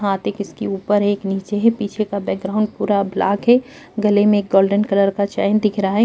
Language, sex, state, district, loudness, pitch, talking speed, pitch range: Hindi, female, Uttar Pradesh, Jalaun, -18 LUFS, 205 Hz, 230 wpm, 200-215 Hz